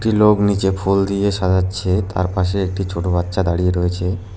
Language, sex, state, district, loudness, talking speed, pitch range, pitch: Bengali, male, West Bengal, Cooch Behar, -18 LUFS, 180 wpm, 90-100 Hz, 95 Hz